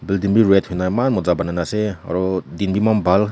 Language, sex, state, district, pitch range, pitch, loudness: Nagamese, male, Nagaland, Kohima, 90-105 Hz, 95 Hz, -18 LUFS